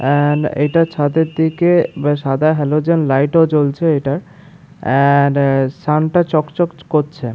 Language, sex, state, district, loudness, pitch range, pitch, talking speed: Bengali, male, West Bengal, Paschim Medinipur, -15 LUFS, 140-165 Hz, 150 Hz, 115 wpm